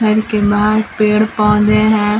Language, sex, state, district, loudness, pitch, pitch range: Hindi, female, Jharkhand, Deoghar, -13 LUFS, 215 Hz, 210-215 Hz